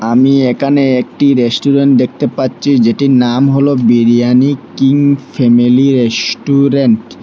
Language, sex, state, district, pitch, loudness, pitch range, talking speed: Bengali, male, Assam, Hailakandi, 135 Hz, -10 LUFS, 120-140 Hz, 115 wpm